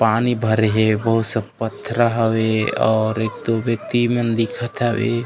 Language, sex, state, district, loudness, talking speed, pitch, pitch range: Chhattisgarhi, male, Chhattisgarh, Raigarh, -19 LUFS, 160 wpm, 115 Hz, 110-120 Hz